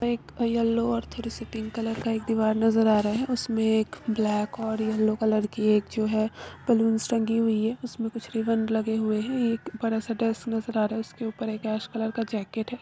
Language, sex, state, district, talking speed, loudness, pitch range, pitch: Hindi, female, Uttar Pradesh, Budaun, 225 wpm, -27 LUFS, 220-230 Hz, 225 Hz